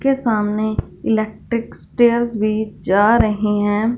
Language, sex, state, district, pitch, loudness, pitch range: Hindi, female, Punjab, Fazilka, 215 Hz, -18 LUFS, 210-235 Hz